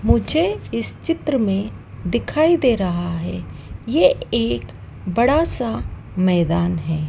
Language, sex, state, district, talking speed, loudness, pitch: Hindi, female, Madhya Pradesh, Dhar, 120 wpm, -20 LUFS, 175 Hz